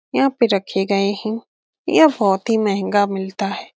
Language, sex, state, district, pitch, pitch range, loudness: Hindi, female, Bihar, Saran, 200 Hz, 195-225 Hz, -18 LUFS